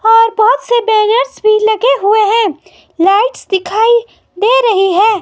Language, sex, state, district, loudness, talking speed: Hindi, female, Himachal Pradesh, Shimla, -11 LUFS, 150 wpm